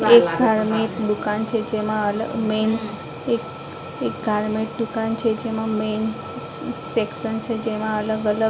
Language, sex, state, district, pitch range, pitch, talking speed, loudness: Gujarati, female, Maharashtra, Mumbai Suburban, 215-225 Hz, 220 Hz, 120 wpm, -23 LUFS